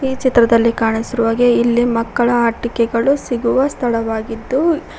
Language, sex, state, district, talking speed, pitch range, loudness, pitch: Kannada, female, Karnataka, Koppal, 120 wpm, 230-255 Hz, -16 LUFS, 235 Hz